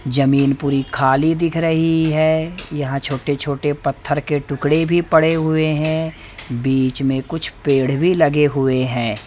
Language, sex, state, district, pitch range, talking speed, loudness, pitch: Hindi, male, Madhya Pradesh, Umaria, 135-160 Hz, 150 wpm, -18 LUFS, 145 Hz